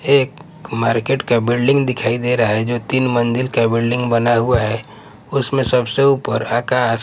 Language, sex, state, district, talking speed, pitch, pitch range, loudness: Hindi, male, Punjab, Pathankot, 170 wpm, 120 Hz, 115-135 Hz, -17 LUFS